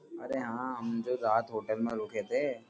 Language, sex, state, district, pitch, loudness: Hindi, male, Uttar Pradesh, Jyotiba Phule Nagar, 125 Hz, -33 LUFS